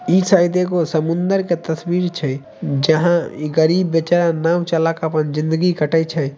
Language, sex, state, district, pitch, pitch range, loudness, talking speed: Maithili, male, Bihar, Samastipur, 165 Hz, 160-175 Hz, -17 LUFS, 160 wpm